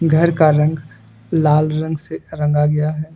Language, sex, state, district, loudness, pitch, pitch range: Hindi, male, Jharkhand, Ranchi, -16 LUFS, 155 Hz, 150-160 Hz